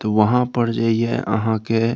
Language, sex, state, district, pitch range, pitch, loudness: Maithili, male, Bihar, Saharsa, 110-115 Hz, 115 Hz, -19 LUFS